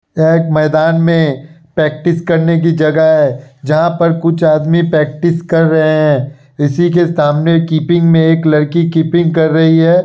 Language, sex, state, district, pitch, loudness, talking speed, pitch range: Hindi, male, Bihar, Kishanganj, 160 Hz, -11 LUFS, 165 wpm, 155-165 Hz